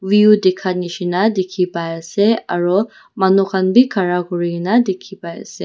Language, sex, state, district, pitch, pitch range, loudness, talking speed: Nagamese, female, Nagaland, Dimapur, 190 Hz, 180-205 Hz, -16 LUFS, 160 wpm